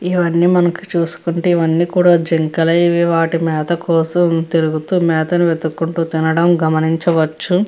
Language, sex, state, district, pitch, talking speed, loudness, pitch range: Telugu, female, Andhra Pradesh, Guntur, 170 Hz, 115 wpm, -15 LUFS, 160-175 Hz